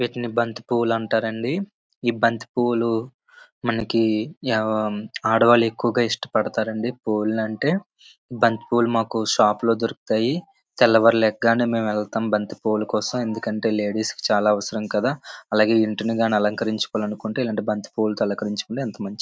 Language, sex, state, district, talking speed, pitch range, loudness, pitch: Telugu, male, Andhra Pradesh, Srikakulam, 110 wpm, 110-120 Hz, -22 LUFS, 110 Hz